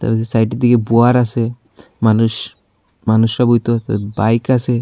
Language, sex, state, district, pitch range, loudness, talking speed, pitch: Bengali, female, Tripura, Unakoti, 110-120 Hz, -15 LUFS, 125 wpm, 115 Hz